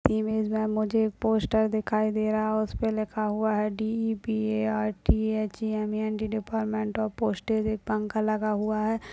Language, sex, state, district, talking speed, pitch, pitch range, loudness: Hindi, male, Maharashtra, Solapur, 210 wpm, 215 Hz, 215-220 Hz, -28 LUFS